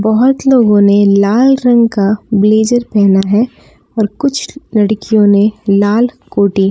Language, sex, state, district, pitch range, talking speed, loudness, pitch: Hindi, female, Jharkhand, Palamu, 205-240 Hz, 135 wpm, -11 LUFS, 215 Hz